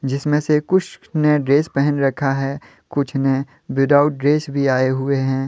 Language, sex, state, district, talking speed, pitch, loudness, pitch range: Hindi, male, Jharkhand, Deoghar, 175 wpm, 140 Hz, -18 LUFS, 135-150 Hz